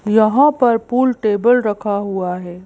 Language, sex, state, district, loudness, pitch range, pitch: Hindi, female, Madhya Pradesh, Bhopal, -16 LUFS, 200-245 Hz, 215 Hz